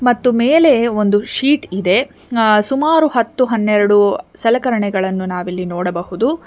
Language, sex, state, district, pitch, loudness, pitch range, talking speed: Kannada, female, Karnataka, Bangalore, 225 Hz, -15 LUFS, 190-250 Hz, 110 wpm